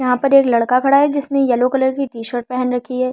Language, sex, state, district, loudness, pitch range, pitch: Hindi, female, Delhi, New Delhi, -16 LUFS, 245-275 Hz, 255 Hz